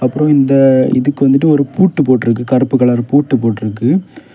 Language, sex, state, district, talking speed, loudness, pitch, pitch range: Tamil, male, Tamil Nadu, Kanyakumari, 165 wpm, -12 LUFS, 135 Hz, 125-145 Hz